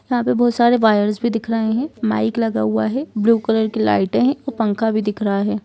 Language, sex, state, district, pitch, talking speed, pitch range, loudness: Hindi, female, Jharkhand, Jamtara, 220 Hz, 255 wpm, 200-235 Hz, -18 LUFS